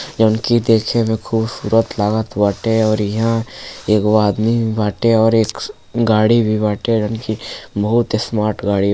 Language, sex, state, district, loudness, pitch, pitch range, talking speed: Bhojpuri, male, Uttar Pradesh, Gorakhpur, -16 LUFS, 110 Hz, 105-115 Hz, 150 wpm